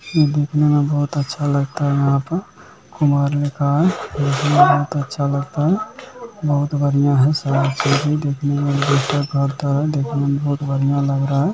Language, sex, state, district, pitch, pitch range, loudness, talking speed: Maithili, male, Bihar, Muzaffarpur, 145 Hz, 140-150 Hz, -18 LUFS, 145 wpm